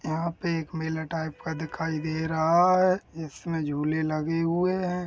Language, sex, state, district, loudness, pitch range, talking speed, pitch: Hindi, male, Chhattisgarh, Rajnandgaon, -27 LUFS, 160-170 Hz, 175 wpm, 160 Hz